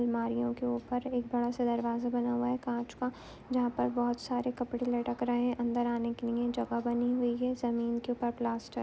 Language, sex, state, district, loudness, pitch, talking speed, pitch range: Hindi, female, Uttar Pradesh, Ghazipur, -33 LUFS, 240 Hz, 225 wpm, 235-245 Hz